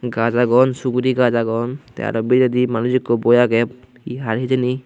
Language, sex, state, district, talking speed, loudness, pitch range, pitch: Chakma, male, Tripura, Unakoti, 185 wpm, -18 LUFS, 115-125 Hz, 125 Hz